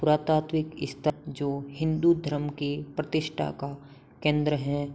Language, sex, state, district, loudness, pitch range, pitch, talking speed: Hindi, male, Uttar Pradesh, Hamirpur, -28 LUFS, 145-155 Hz, 150 Hz, 120 wpm